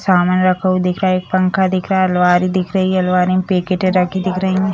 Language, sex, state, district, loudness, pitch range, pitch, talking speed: Hindi, female, Bihar, Sitamarhi, -15 LUFS, 180-185 Hz, 185 Hz, 265 wpm